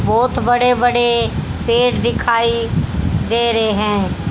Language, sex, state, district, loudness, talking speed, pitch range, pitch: Hindi, female, Haryana, Charkhi Dadri, -16 LUFS, 110 wpm, 230-245 Hz, 235 Hz